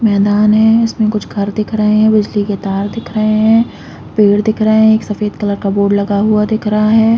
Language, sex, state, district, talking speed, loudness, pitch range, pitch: Hindi, female, Chhattisgarh, Raigarh, 240 wpm, -13 LUFS, 205-220 Hz, 210 Hz